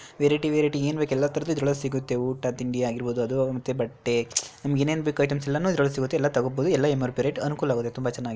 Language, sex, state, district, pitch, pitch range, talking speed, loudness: Kannada, female, Karnataka, Dharwad, 135 Hz, 125-145 Hz, 195 wpm, -26 LUFS